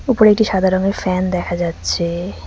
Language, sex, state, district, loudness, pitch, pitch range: Bengali, female, West Bengal, Cooch Behar, -17 LUFS, 185 Hz, 175-195 Hz